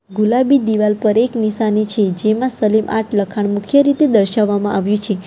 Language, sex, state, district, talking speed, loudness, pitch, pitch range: Gujarati, female, Gujarat, Valsad, 170 wpm, -15 LUFS, 215 Hz, 205-225 Hz